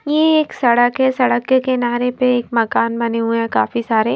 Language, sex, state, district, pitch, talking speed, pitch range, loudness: Hindi, female, Himachal Pradesh, Shimla, 240 Hz, 215 wpm, 235-260 Hz, -16 LUFS